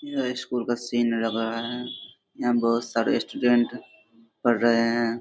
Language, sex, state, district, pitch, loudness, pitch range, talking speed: Hindi, male, Bihar, Darbhanga, 120 Hz, -25 LUFS, 115-120 Hz, 160 wpm